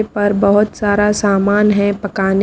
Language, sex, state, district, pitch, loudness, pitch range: Hindi, female, Haryana, Rohtak, 205 Hz, -14 LUFS, 200-210 Hz